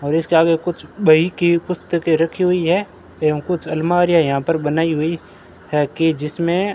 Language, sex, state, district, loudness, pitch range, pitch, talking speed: Hindi, male, Rajasthan, Bikaner, -18 LUFS, 155-175 Hz, 165 Hz, 185 wpm